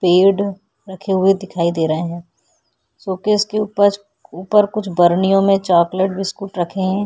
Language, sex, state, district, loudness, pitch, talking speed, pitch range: Hindi, female, Chhattisgarh, Korba, -17 LUFS, 190 Hz, 145 wpm, 180-200 Hz